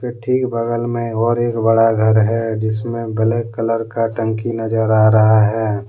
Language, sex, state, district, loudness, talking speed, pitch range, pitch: Hindi, male, Jharkhand, Deoghar, -16 LUFS, 185 wpm, 110-115 Hz, 115 Hz